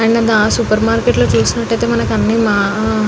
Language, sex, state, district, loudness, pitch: Telugu, female, Telangana, Nalgonda, -13 LUFS, 205 Hz